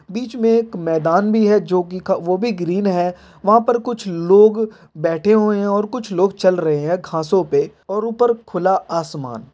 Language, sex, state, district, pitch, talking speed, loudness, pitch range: Hindi, male, Bihar, Jahanabad, 195 Hz, 200 wpm, -17 LUFS, 175-215 Hz